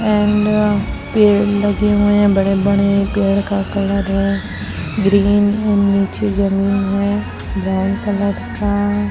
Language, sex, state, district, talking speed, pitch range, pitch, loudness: Hindi, male, Chhattisgarh, Raipur, 130 wpm, 195-205 Hz, 200 Hz, -16 LUFS